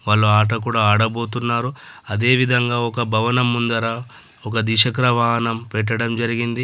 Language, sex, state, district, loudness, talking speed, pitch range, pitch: Telugu, male, Telangana, Adilabad, -19 LUFS, 115 wpm, 115-120 Hz, 115 Hz